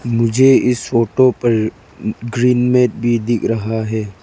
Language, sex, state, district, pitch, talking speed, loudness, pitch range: Hindi, female, Arunachal Pradesh, Lower Dibang Valley, 115 Hz, 140 wpm, -15 LUFS, 110-125 Hz